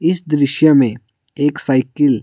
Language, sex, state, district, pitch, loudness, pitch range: Hindi, male, Himachal Pradesh, Shimla, 140 Hz, -15 LUFS, 130-150 Hz